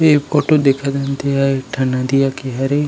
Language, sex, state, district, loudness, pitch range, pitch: Chhattisgarhi, male, Chhattisgarh, Rajnandgaon, -16 LUFS, 135-145 Hz, 140 Hz